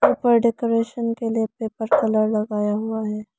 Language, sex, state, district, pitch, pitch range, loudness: Hindi, female, Arunachal Pradesh, Lower Dibang Valley, 225 Hz, 215-235 Hz, -21 LUFS